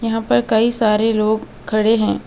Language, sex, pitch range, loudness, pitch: Hindi, female, 215-225 Hz, -16 LUFS, 220 Hz